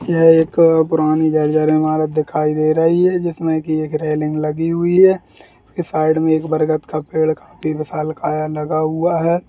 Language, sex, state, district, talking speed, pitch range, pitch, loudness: Hindi, male, Bihar, Gaya, 175 wpm, 155-165 Hz, 155 Hz, -16 LUFS